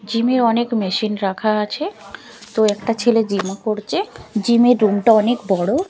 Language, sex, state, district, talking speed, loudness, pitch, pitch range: Bengali, female, Chhattisgarh, Raipur, 185 wpm, -18 LUFS, 220 Hz, 210-240 Hz